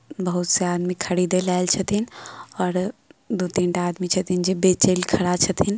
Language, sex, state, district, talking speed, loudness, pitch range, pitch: Maithili, female, Bihar, Samastipur, 195 wpm, -22 LUFS, 180-190 Hz, 180 Hz